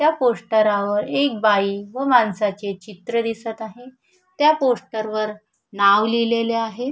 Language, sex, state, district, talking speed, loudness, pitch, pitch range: Marathi, female, Maharashtra, Sindhudurg, 140 wpm, -20 LUFS, 225 Hz, 210-250 Hz